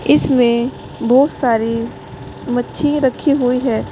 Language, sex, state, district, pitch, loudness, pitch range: Hindi, female, Uttar Pradesh, Saharanpur, 245 Hz, -16 LUFS, 235-265 Hz